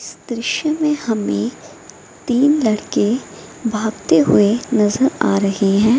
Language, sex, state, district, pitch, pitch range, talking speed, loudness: Hindi, female, Bihar, Samastipur, 230 Hz, 210-260 Hz, 120 wpm, -17 LUFS